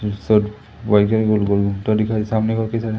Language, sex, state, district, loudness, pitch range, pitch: Hindi, male, Madhya Pradesh, Umaria, -18 LUFS, 105-110 Hz, 110 Hz